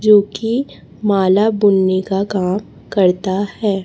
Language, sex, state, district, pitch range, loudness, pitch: Hindi, female, Chhattisgarh, Raipur, 190-210 Hz, -16 LUFS, 195 Hz